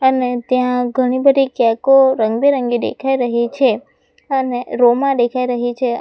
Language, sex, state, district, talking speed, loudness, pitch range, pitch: Gujarati, female, Gujarat, Valsad, 150 wpm, -16 LUFS, 240-265 Hz, 250 Hz